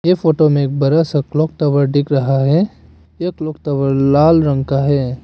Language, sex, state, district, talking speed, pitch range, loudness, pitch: Hindi, male, Arunachal Pradesh, Papum Pare, 205 wpm, 140-160 Hz, -15 LUFS, 145 Hz